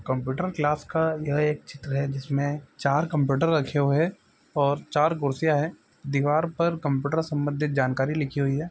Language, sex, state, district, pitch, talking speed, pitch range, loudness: Maithili, male, Bihar, Supaul, 145 Hz, 170 wpm, 140-155 Hz, -26 LUFS